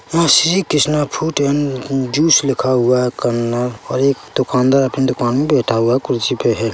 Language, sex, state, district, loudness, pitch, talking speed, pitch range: Hindi, male, Chhattisgarh, Bilaspur, -15 LUFS, 130 Hz, 195 wpm, 125-145 Hz